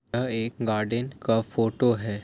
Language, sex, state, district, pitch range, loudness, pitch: Hindi, male, Jharkhand, Jamtara, 110-120 Hz, -26 LUFS, 115 Hz